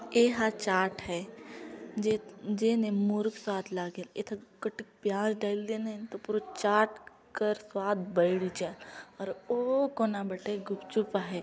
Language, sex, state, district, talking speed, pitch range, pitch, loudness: Chhattisgarhi, female, Chhattisgarh, Jashpur, 155 wpm, 195-220 Hz, 210 Hz, -32 LUFS